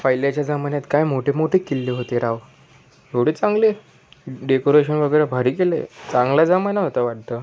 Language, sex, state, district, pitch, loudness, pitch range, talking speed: Marathi, male, Maharashtra, Pune, 140 Hz, -20 LUFS, 125-155 Hz, 145 wpm